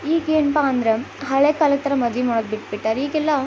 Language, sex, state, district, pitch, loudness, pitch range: Kannada, female, Karnataka, Belgaum, 280 Hz, -20 LUFS, 235-300 Hz